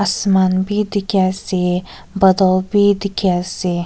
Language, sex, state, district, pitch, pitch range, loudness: Nagamese, female, Nagaland, Kohima, 190 Hz, 185-200 Hz, -16 LUFS